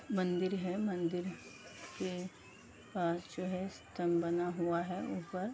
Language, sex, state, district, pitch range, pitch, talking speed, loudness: Hindi, female, Uttar Pradesh, Gorakhpur, 175-185 Hz, 180 Hz, 130 wpm, -37 LUFS